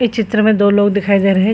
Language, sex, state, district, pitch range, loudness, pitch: Hindi, female, Chhattisgarh, Bilaspur, 200-220 Hz, -13 LUFS, 205 Hz